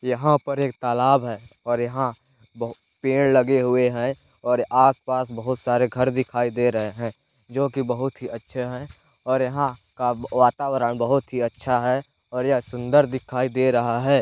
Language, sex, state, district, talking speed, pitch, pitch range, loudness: Hindi, male, Chhattisgarh, Balrampur, 175 wpm, 125 Hz, 120-135 Hz, -23 LUFS